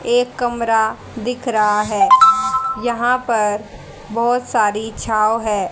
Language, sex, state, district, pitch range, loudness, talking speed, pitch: Hindi, female, Haryana, Rohtak, 215-245 Hz, -17 LUFS, 115 wpm, 230 Hz